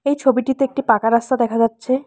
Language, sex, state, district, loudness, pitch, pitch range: Bengali, female, West Bengal, Alipurduar, -18 LUFS, 255 Hz, 230-270 Hz